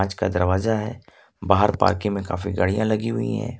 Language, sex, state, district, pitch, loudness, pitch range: Hindi, male, Jharkhand, Ranchi, 105 Hz, -22 LUFS, 95-110 Hz